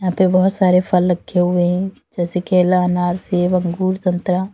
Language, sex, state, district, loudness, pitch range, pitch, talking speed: Hindi, female, Uttar Pradesh, Lalitpur, -17 LUFS, 180-185 Hz, 180 Hz, 185 wpm